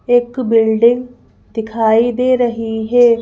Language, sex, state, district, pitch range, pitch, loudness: Hindi, female, Madhya Pradesh, Bhopal, 225-245 Hz, 235 Hz, -14 LUFS